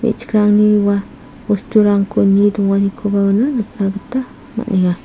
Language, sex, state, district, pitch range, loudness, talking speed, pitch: Garo, female, Meghalaya, South Garo Hills, 200-225 Hz, -15 LUFS, 105 wpm, 205 Hz